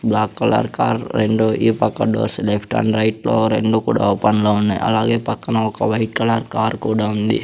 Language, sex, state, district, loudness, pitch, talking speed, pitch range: Telugu, female, Andhra Pradesh, Sri Satya Sai, -18 LUFS, 110 Hz, 195 wpm, 105-110 Hz